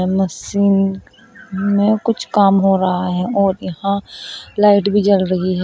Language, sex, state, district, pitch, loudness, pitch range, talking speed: Hindi, female, Uttar Pradesh, Shamli, 195 Hz, -16 LUFS, 185-200 Hz, 150 wpm